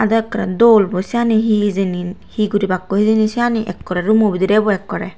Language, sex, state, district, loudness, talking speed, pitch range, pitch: Chakma, female, Tripura, Unakoti, -16 LUFS, 185 wpm, 190-220 Hz, 210 Hz